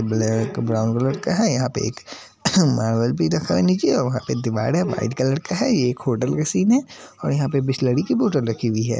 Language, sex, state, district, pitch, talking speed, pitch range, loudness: Hindi, male, Bihar, Madhepura, 125 Hz, 245 wpm, 110-150 Hz, -21 LUFS